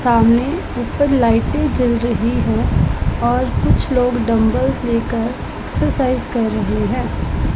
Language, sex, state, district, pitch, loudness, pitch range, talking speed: Hindi, female, Punjab, Pathankot, 235 Hz, -17 LUFS, 230-250 Hz, 120 wpm